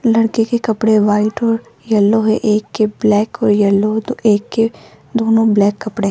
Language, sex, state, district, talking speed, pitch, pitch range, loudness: Hindi, female, Rajasthan, Jaipur, 175 wpm, 220 Hz, 210-225 Hz, -15 LUFS